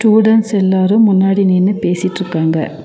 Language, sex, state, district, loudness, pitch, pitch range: Tamil, female, Tamil Nadu, Nilgiris, -13 LUFS, 190 Hz, 185-210 Hz